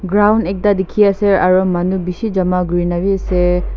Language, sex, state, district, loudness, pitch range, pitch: Nagamese, female, Nagaland, Kohima, -15 LUFS, 180-200 Hz, 190 Hz